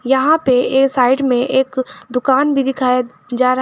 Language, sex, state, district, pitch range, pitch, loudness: Hindi, female, Jharkhand, Garhwa, 250-270 Hz, 260 Hz, -15 LUFS